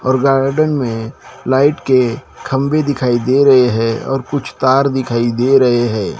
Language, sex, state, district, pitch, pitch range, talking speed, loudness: Hindi, male, Maharashtra, Gondia, 130 Hz, 120-135 Hz, 165 wpm, -14 LUFS